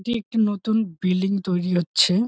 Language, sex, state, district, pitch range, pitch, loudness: Bengali, male, West Bengal, Jalpaiguri, 185-220 Hz, 195 Hz, -22 LUFS